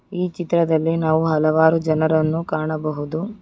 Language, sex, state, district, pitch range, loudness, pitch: Kannada, female, Karnataka, Bangalore, 155-170 Hz, -19 LUFS, 160 Hz